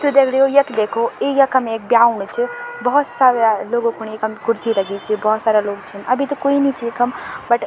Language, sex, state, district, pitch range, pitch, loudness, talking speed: Garhwali, female, Uttarakhand, Tehri Garhwal, 220-265 Hz, 235 Hz, -17 LUFS, 235 wpm